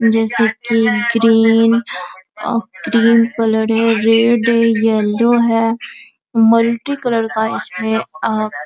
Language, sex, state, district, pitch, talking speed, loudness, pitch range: Hindi, female, Bihar, Araria, 230 Hz, 125 wpm, -14 LUFS, 225-230 Hz